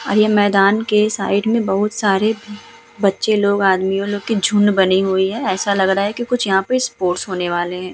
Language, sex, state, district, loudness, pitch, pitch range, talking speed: Hindi, female, Uttar Pradesh, Hamirpur, -17 LUFS, 200 Hz, 190-215 Hz, 220 wpm